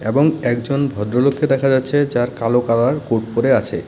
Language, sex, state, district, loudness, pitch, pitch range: Bengali, male, West Bengal, Cooch Behar, -17 LUFS, 125 Hz, 120-140 Hz